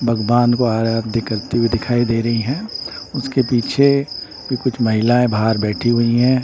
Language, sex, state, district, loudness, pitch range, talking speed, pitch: Hindi, male, Bihar, Patna, -17 LUFS, 115-130 Hz, 170 wpm, 120 Hz